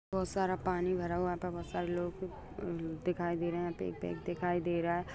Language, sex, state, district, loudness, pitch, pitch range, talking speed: Hindi, male, Bihar, Begusarai, -36 LUFS, 175 Hz, 170-180 Hz, 245 wpm